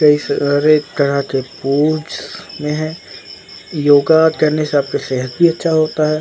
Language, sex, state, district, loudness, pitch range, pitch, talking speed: Hindi, male, Bihar, Patna, -15 LUFS, 145-155 Hz, 150 Hz, 155 wpm